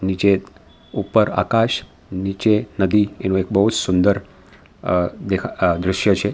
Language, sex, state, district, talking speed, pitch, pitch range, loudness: Gujarati, male, Gujarat, Valsad, 125 wpm, 100 Hz, 95-105 Hz, -19 LUFS